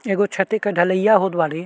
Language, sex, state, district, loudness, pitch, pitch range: Bhojpuri, male, Uttar Pradesh, Ghazipur, -18 LUFS, 195 Hz, 175-205 Hz